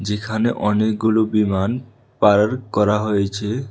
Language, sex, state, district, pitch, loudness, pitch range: Bengali, male, Tripura, West Tripura, 110 Hz, -19 LUFS, 105-115 Hz